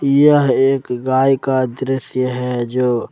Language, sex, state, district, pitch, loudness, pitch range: Hindi, male, Jharkhand, Ranchi, 130 Hz, -16 LUFS, 125-135 Hz